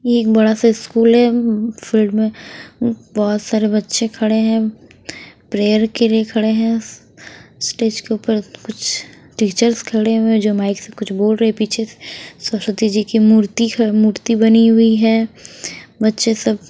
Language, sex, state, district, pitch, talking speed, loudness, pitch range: Hindi, female, Haryana, Rohtak, 220 Hz, 160 wpm, -16 LUFS, 215-225 Hz